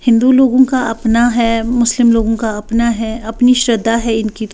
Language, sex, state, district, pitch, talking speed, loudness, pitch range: Hindi, female, Bihar, West Champaran, 230 Hz, 185 wpm, -13 LUFS, 225-245 Hz